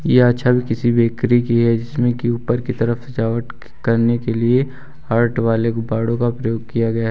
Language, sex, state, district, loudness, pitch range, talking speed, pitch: Hindi, male, Uttar Pradesh, Lucknow, -18 LUFS, 115-125 Hz, 185 wpm, 120 Hz